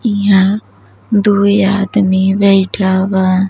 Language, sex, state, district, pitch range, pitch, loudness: Bhojpuri, female, Uttar Pradesh, Deoria, 190-205 Hz, 195 Hz, -12 LUFS